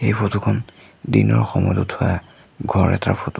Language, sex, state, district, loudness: Assamese, male, Assam, Sonitpur, -19 LUFS